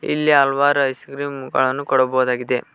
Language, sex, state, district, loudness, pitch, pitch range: Kannada, male, Karnataka, Koppal, -18 LUFS, 135 Hz, 130-145 Hz